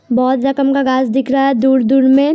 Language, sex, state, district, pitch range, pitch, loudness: Hindi, female, Uttar Pradesh, Hamirpur, 260-275 Hz, 265 Hz, -13 LUFS